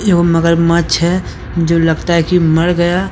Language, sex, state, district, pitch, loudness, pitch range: Hindi, male, Jharkhand, Deoghar, 170 Hz, -13 LUFS, 165-175 Hz